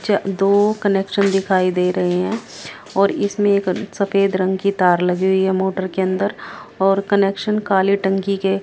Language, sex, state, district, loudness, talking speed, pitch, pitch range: Hindi, female, Haryana, Jhajjar, -18 LUFS, 175 wpm, 195 Hz, 190-200 Hz